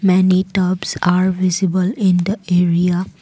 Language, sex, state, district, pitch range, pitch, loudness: English, female, Assam, Kamrup Metropolitan, 180-185 Hz, 185 Hz, -16 LUFS